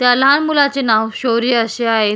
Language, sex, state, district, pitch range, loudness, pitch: Marathi, female, Maharashtra, Solapur, 225-270 Hz, -14 LUFS, 240 Hz